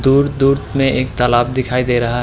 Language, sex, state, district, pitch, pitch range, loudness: Hindi, male, Uttarakhand, Tehri Garhwal, 130 Hz, 125-135 Hz, -15 LUFS